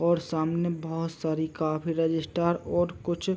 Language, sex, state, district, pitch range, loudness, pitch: Hindi, male, Chhattisgarh, Bilaspur, 160-170 Hz, -28 LUFS, 165 Hz